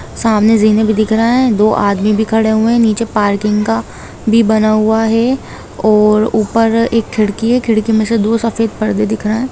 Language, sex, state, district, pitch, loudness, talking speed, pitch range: Hindi, female, Jharkhand, Jamtara, 220 Hz, -12 LUFS, 195 wpm, 215-225 Hz